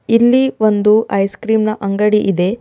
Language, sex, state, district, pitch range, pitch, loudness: Kannada, female, Karnataka, Bidar, 200-225 Hz, 215 Hz, -14 LUFS